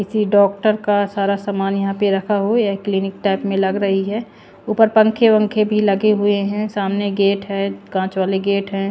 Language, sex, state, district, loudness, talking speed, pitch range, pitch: Hindi, female, Punjab, Pathankot, -18 LUFS, 195 wpm, 195-210 Hz, 200 Hz